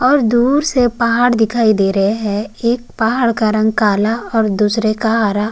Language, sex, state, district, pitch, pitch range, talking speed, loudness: Hindi, male, Uttarakhand, Tehri Garhwal, 225 Hz, 210-240 Hz, 185 wpm, -15 LUFS